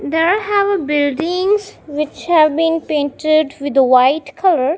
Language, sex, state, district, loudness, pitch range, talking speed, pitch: English, female, Punjab, Kapurthala, -15 LUFS, 290-355 Hz, 150 wpm, 310 Hz